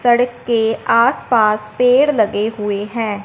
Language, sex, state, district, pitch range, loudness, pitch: Hindi, male, Punjab, Fazilka, 210-240 Hz, -16 LUFS, 225 Hz